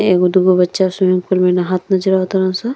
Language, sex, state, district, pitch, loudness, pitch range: Bhojpuri, female, Uttar Pradesh, Deoria, 185 Hz, -14 LUFS, 180-190 Hz